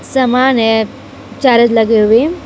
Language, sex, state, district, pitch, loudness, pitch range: Hindi, female, Jharkhand, Deoghar, 240 Hz, -11 LUFS, 225-260 Hz